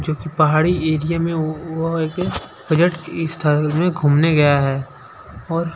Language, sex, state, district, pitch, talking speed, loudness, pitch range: Hindi, male, Chhattisgarh, Sukma, 160 Hz, 135 wpm, -18 LUFS, 150-165 Hz